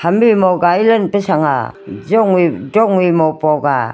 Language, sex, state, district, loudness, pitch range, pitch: Wancho, female, Arunachal Pradesh, Longding, -13 LUFS, 150-200 Hz, 175 Hz